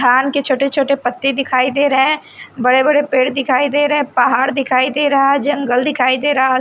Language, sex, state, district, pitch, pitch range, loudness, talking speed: Hindi, female, Odisha, Sambalpur, 275 Hz, 255-285 Hz, -14 LUFS, 215 wpm